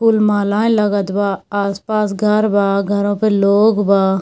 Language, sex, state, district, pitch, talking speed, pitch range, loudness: Hindi, female, Bihar, Darbhanga, 205 Hz, 155 wpm, 200-215 Hz, -15 LUFS